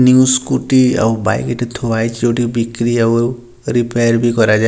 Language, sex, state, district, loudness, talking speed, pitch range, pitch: Odia, male, Odisha, Nuapada, -14 LUFS, 165 wpm, 115-125 Hz, 120 Hz